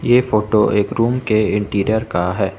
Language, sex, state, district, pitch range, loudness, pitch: Hindi, male, Arunachal Pradesh, Lower Dibang Valley, 100-115 Hz, -17 LUFS, 105 Hz